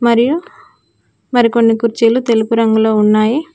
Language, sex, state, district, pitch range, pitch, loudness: Telugu, female, Telangana, Mahabubabad, 225-245 Hz, 230 Hz, -13 LUFS